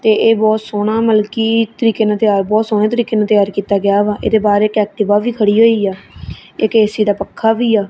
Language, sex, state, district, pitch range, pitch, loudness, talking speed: Punjabi, female, Punjab, Kapurthala, 205-225 Hz, 215 Hz, -14 LUFS, 235 wpm